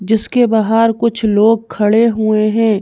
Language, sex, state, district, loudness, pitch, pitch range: Hindi, female, Madhya Pradesh, Bhopal, -13 LUFS, 220 Hz, 215-230 Hz